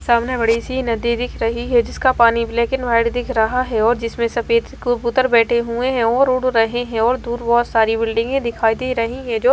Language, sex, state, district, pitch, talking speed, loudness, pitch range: Hindi, female, Haryana, Rohtak, 235 Hz, 225 wpm, -18 LUFS, 230-250 Hz